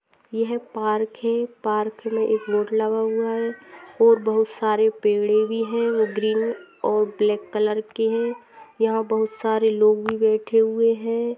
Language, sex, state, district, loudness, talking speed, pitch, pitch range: Hindi, female, Jharkhand, Sahebganj, -22 LUFS, 160 wpm, 220 Hz, 215-230 Hz